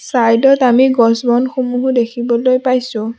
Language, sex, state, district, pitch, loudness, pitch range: Assamese, female, Assam, Sonitpur, 245 Hz, -13 LUFS, 235-255 Hz